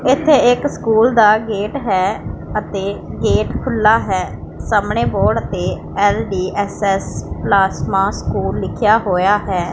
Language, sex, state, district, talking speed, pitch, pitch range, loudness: Punjabi, female, Punjab, Pathankot, 115 wpm, 205 Hz, 195-225 Hz, -16 LUFS